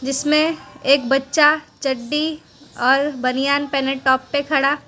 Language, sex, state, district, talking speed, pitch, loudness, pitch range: Hindi, female, Gujarat, Valsad, 125 wpm, 275 Hz, -18 LUFS, 270-295 Hz